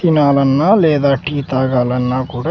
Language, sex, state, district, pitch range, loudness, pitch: Telugu, male, Andhra Pradesh, Sri Satya Sai, 130-150 Hz, -14 LUFS, 140 Hz